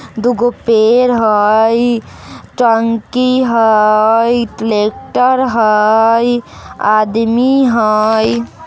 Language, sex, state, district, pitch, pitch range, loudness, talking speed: Bajjika, female, Bihar, Vaishali, 225 Hz, 215-240 Hz, -12 LUFS, 60 wpm